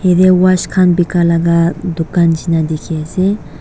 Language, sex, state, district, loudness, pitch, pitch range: Nagamese, female, Nagaland, Dimapur, -13 LUFS, 170 Hz, 165-185 Hz